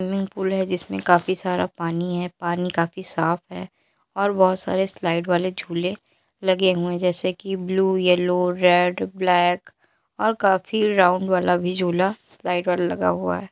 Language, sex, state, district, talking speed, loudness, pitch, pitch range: Hindi, female, Uttar Pradesh, Deoria, 170 wpm, -21 LUFS, 180 Hz, 175-190 Hz